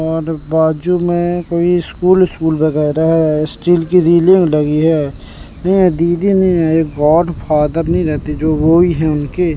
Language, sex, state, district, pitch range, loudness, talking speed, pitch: Hindi, male, Madhya Pradesh, Katni, 155-175 Hz, -13 LUFS, 150 wpm, 160 Hz